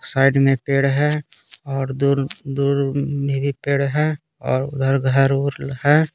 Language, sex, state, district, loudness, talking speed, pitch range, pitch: Hindi, male, Bihar, Patna, -20 LUFS, 145 wpm, 135-140 Hz, 140 Hz